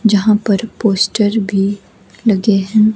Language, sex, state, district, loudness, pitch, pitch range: Hindi, female, Himachal Pradesh, Shimla, -14 LUFS, 210 Hz, 200-215 Hz